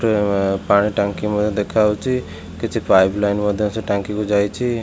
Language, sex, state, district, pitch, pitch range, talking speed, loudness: Odia, male, Odisha, Khordha, 105 Hz, 100-110 Hz, 150 wpm, -19 LUFS